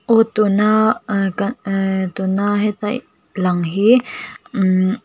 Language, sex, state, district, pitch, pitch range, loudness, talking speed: Mizo, female, Mizoram, Aizawl, 205 Hz, 190-220 Hz, -17 LUFS, 130 wpm